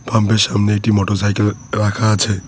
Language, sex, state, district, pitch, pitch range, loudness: Bengali, male, West Bengal, Cooch Behar, 105 Hz, 105-110 Hz, -16 LUFS